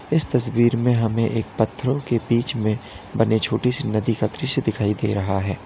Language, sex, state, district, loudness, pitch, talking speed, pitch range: Hindi, male, Uttar Pradesh, Lalitpur, -21 LUFS, 115 Hz, 200 wpm, 110-125 Hz